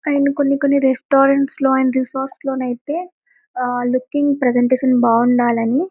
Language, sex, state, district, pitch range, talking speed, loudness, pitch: Telugu, female, Telangana, Karimnagar, 250-280 Hz, 140 wpm, -17 LUFS, 265 Hz